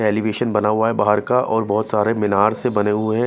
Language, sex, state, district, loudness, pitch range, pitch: Hindi, male, Bihar, Patna, -18 LUFS, 105-115 Hz, 110 Hz